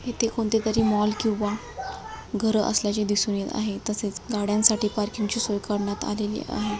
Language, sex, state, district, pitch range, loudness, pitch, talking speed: Marathi, female, Maharashtra, Dhule, 205-220 Hz, -25 LUFS, 210 Hz, 150 wpm